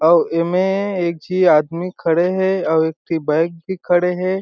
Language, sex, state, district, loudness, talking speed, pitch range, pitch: Chhattisgarhi, male, Chhattisgarh, Jashpur, -18 LUFS, 190 wpm, 165-185 Hz, 175 Hz